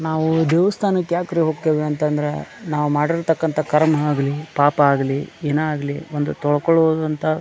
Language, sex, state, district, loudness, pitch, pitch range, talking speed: Kannada, male, Karnataka, Dharwad, -19 LUFS, 155 Hz, 150-160 Hz, 140 wpm